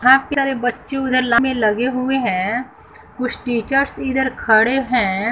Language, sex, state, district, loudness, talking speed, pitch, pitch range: Hindi, female, Bihar, West Champaran, -18 LUFS, 160 wpm, 255 Hz, 235-270 Hz